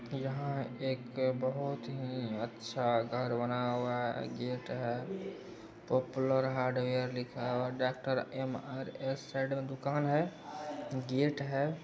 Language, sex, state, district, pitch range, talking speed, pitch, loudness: Hindi, male, Bihar, Araria, 125-135 Hz, 115 wpm, 130 Hz, -35 LUFS